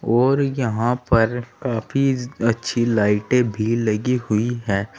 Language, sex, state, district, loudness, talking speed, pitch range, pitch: Hindi, male, Uttar Pradesh, Saharanpur, -20 LUFS, 120 wpm, 110-125 Hz, 120 Hz